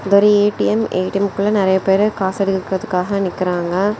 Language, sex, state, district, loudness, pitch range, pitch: Tamil, female, Tamil Nadu, Kanyakumari, -17 LUFS, 190-205 Hz, 195 Hz